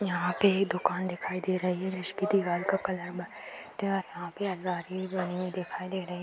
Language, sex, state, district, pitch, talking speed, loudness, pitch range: Hindi, female, Bihar, Bhagalpur, 185 Hz, 230 wpm, -31 LUFS, 180-190 Hz